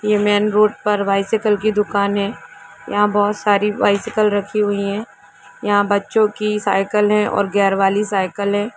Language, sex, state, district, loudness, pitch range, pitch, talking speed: Hindi, female, Jharkhand, Jamtara, -17 LUFS, 200-210 Hz, 205 Hz, 185 wpm